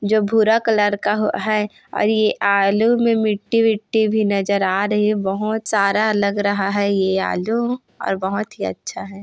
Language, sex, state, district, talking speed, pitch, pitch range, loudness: Hindi, female, Chhattisgarh, Korba, 180 wpm, 210 Hz, 200-220 Hz, -19 LUFS